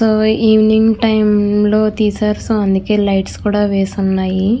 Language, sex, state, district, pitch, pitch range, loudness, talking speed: Telugu, female, Andhra Pradesh, Krishna, 210 Hz, 200-220 Hz, -14 LUFS, 130 wpm